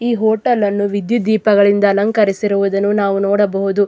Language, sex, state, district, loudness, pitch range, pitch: Kannada, female, Karnataka, Dakshina Kannada, -15 LUFS, 200-215 Hz, 205 Hz